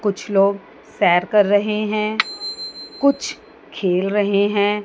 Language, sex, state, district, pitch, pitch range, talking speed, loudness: Hindi, female, Chandigarh, Chandigarh, 205 Hz, 200-215 Hz, 125 wpm, -19 LUFS